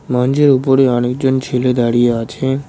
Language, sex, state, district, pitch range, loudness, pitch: Bengali, male, West Bengal, Cooch Behar, 125-135 Hz, -14 LUFS, 130 Hz